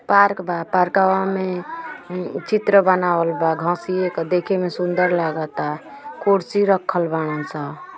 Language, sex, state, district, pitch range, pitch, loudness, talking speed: Bhojpuri, female, Uttar Pradesh, Ghazipur, 170-195 Hz, 180 Hz, -20 LUFS, 135 wpm